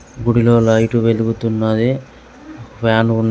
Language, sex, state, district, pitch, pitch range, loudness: Telugu, male, Andhra Pradesh, Guntur, 115 Hz, 110-115 Hz, -15 LUFS